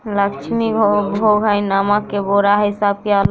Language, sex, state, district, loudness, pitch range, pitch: Bajjika, female, Bihar, Vaishali, -16 LUFS, 200-210 Hz, 205 Hz